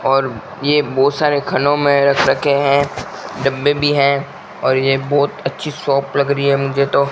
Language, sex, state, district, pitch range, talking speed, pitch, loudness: Hindi, male, Rajasthan, Bikaner, 135-145 Hz, 195 wpm, 140 Hz, -16 LUFS